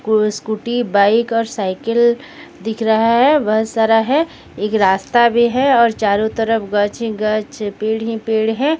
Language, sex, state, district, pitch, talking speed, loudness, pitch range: Hindi, female, Odisha, Sambalpur, 225 Hz, 170 wpm, -16 LUFS, 215-235 Hz